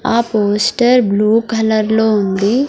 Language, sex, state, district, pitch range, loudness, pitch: Telugu, female, Andhra Pradesh, Sri Satya Sai, 210-235 Hz, -13 LUFS, 220 Hz